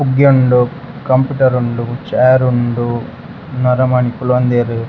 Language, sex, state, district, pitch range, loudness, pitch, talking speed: Tulu, male, Karnataka, Dakshina Kannada, 120-130 Hz, -14 LUFS, 125 Hz, 100 wpm